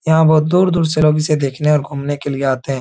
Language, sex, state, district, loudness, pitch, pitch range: Hindi, male, Uttar Pradesh, Etah, -15 LUFS, 150 Hz, 140-160 Hz